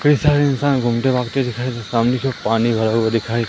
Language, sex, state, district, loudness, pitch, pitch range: Hindi, male, Madhya Pradesh, Umaria, -18 LUFS, 125 Hz, 115-135 Hz